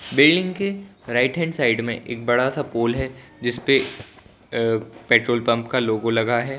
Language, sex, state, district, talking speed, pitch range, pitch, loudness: Hindi, male, Gujarat, Valsad, 175 wpm, 115-135 Hz, 120 Hz, -21 LUFS